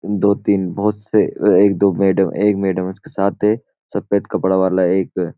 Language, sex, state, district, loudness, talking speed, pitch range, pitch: Hindi, male, Uttarakhand, Uttarkashi, -17 LUFS, 190 wpm, 95-105 Hz, 100 Hz